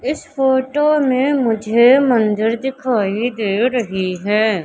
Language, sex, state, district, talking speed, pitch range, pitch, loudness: Hindi, female, Madhya Pradesh, Katni, 115 wpm, 215-265 Hz, 240 Hz, -16 LUFS